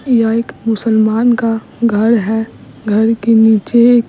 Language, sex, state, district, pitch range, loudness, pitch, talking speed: Hindi, female, Bihar, Patna, 220-235 Hz, -13 LUFS, 225 Hz, 145 wpm